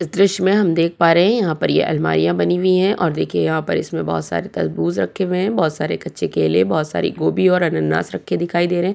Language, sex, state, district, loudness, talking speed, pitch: Hindi, female, Uttarakhand, Tehri Garhwal, -18 LUFS, 270 wpm, 170 Hz